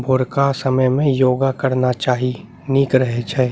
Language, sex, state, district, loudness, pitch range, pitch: Maithili, male, Bihar, Saharsa, -18 LUFS, 125-135 Hz, 130 Hz